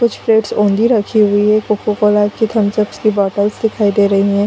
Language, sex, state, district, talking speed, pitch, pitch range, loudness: Hindi, female, Bihar, Kishanganj, 255 wpm, 210 Hz, 205-220 Hz, -14 LUFS